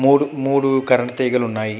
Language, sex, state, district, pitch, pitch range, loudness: Telugu, male, Andhra Pradesh, Chittoor, 130 Hz, 125-135 Hz, -18 LUFS